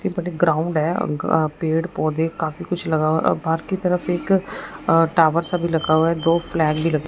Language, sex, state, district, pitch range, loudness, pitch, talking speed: Hindi, male, Punjab, Fazilka, 160-175 Hz, -20 LUFS, 165 Hz, 210 wpm